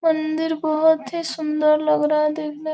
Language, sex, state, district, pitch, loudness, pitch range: Hindi, female, Bihar, Gopalganj, 310 Hz, -20 LUFS, 305-320 Hz